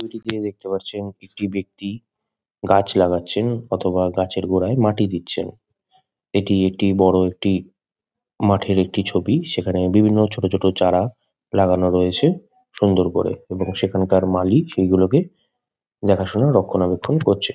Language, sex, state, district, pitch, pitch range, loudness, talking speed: Bengali, male, West Bengal, Kolkata, 95 Hz, 95-105 Hz, -19 LUFS, 125 wpm